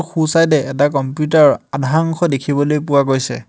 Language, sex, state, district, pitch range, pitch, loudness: Assamese, male, Assam, Hailakandi, 135-160 Hz, 145 Hz, -15 LUFS